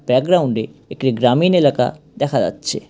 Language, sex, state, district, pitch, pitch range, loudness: Bengali, male, West Bengal, Cooch Behar, 130 Hz, 125-165 Hz, -17 LUFS